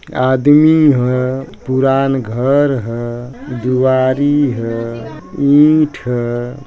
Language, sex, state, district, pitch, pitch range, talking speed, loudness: Bhojpuri, male, Uttar Pradesh, Ghazipur, 130 Hz, 125-140 Hz, 80 wpm, -14 LUFS